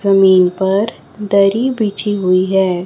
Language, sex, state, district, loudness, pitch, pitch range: Hindi, female, Chhattisgarh, Raipur, -14 LUFS, 195 Hz, 190-205 Hz